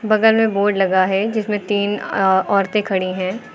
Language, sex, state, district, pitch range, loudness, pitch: Hindi, female, Uttar Pradesh, Lucknow, 190-215 Hz, -17 LUFS, 200 Hz